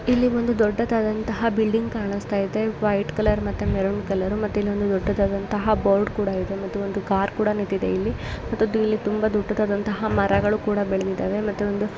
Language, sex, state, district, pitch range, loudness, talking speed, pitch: Kannada, female, Karnataka, Mysore, 200-215 Hz, -23 LUFS, 155 wpm, 205 Hz